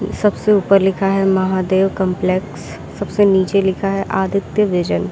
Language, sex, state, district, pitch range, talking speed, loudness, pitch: Hindi, female, Bihar, Saran, 185-195 Hz, 150 wpm, -16 LUFS, 190 Hz